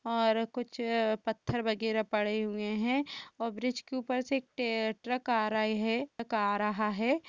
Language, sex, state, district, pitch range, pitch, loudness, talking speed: Hindi, female, Uttar Pradesh, Jalaun, 220-250 Hz, 230 Hz, -32 LUFS, 175 wpm